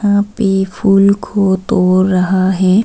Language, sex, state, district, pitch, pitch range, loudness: Hindi, female, Arunachal Pradesh, Papum Pare, 195 Hz, 185-200 Hz, -13 LUFS